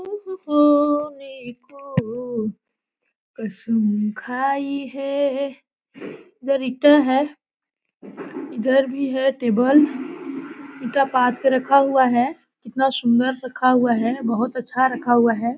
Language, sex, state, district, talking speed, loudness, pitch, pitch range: Hindi, female, Jharkhand, Sahebganj, 110 wpm, -20 LUFS, 265 Hz, 245-280 Hz